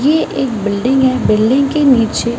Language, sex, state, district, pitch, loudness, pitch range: Hindi, female, Maharashtra, Mumbai Suburban, 255 Hz, -13 LUFS, 230-275 Hz